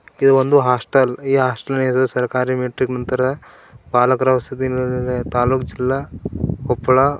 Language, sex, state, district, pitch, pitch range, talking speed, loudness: Kannada, male, Karnataka, Koppal, 130 Hz, 125-135 Hz, 135 wpm, -18 LUFS